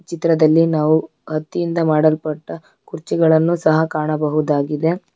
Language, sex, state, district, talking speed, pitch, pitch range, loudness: Kannada, female, Karnataka, Bangalore, 80 wpm, 155 Hz, 155-165 Hz, -17 LUFS